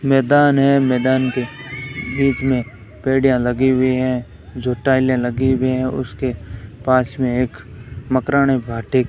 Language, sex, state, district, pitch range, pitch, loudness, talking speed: Hindi, male, Rajasthan, Bikaner, 120-135 Hz, 130 Hz, -18 LUFS, 145 wpm